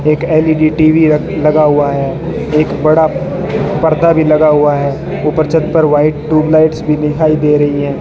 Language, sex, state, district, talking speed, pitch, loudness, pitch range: Hindi, male, Rajasthan, Bikaner, 180 wpm, 155 Hz, -11 LUFS, 150-160 Hz